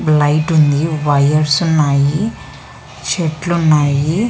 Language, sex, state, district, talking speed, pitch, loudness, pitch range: Telugu, female, Andhra Pradesh, Visakhapatnam, 85 wpm, 150 Hz, -14 LUFS, 145-160 Hz